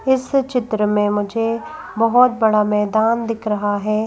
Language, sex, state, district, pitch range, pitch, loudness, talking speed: Hindi, female, Madhya Pradesh, Bhopal, 210-235 Hz, 220 Hz, -18 LUFS, 145 wpm